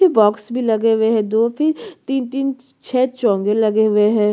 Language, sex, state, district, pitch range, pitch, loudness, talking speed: Hindi, female, Chhattisgarh, Korba, 215-265 Hz, 225 Hz, -17 LUFS, 195 wpm